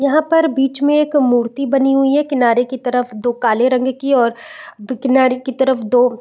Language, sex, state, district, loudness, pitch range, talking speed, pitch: Hindi, female, Chhattisgarh, Raigarh, -15 LUFS, 245-275 Hz, 185 wpm, 260 Hz